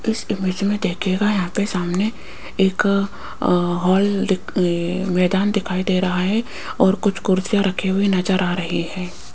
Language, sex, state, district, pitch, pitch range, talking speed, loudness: Hindi, female, Rajasthan, Jaipur, 190 Hz, 180-200 Hz, 165 wpm, -20 LUFS